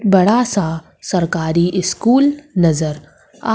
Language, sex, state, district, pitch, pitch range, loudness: Hindi, female, Madhya Pradesh, Umaria, 185 Hz, 165-230 Hz, -16 LUFS